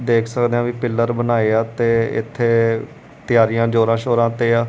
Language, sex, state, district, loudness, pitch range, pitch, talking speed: Punjabi, male, Punjab, Kapurthala, -18 LUFS, 115-120 Hz, 115 Hz, 165 wpm